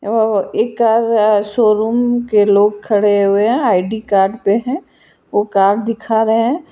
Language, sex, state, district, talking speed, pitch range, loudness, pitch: Hindi, female, Karnataka, Bangalore, 135 wpm, 205-230 Hz, -14 LUFS, 215 Hz